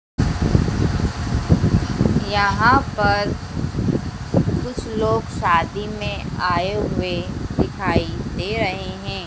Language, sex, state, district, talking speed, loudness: Hindi, female, Madhya Pradesh, Dhar, 80 wpm, -21 LUFS